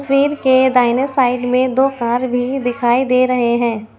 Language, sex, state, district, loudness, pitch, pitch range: Hindi, female, Bihar, Kishanganj, -15 LUFS, 250 Hz, 240-260 Hz